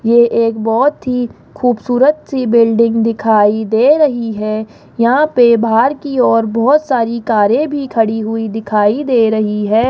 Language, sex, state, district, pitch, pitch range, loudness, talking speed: Hindi, female, Rajasthan, Jaipur, 230 Hz, 220-250 Hz, -13 LUFS, 155 wpm